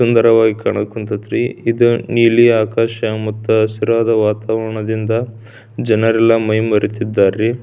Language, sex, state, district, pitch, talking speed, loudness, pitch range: Kannada, male, Karnataka, Belgaum, 110 Hz, 100 wpm, -15 LUFS, 110-115 Hz